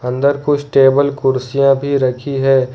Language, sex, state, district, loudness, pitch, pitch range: Hindi, male, Jharkhand, Ranchi, -14 LUFS, 135 Hz, 130-140 Hz